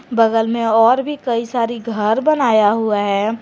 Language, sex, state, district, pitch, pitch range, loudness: Hindi, female, Jharkhand, Garhwa, 230 Hz, 220-240 Hz, -16 LUFS